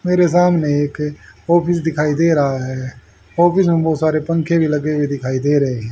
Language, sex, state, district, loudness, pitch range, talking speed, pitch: Hindi, male, Haryana, Rohtak, -16 LUFS, 140-170 Hz, 205 wpm, 150 Hz